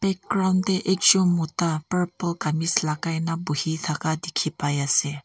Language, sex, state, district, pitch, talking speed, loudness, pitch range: Nagamese, female, Nagaland, Kohima, 165 Hz, 150 wpm, -23 LUFS, 155-185 Hz